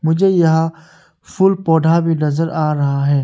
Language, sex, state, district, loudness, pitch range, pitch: Hindi, male, Arunachal Pradesh, Longding, -15 LUFS, 155-170 Hz, 160 Hz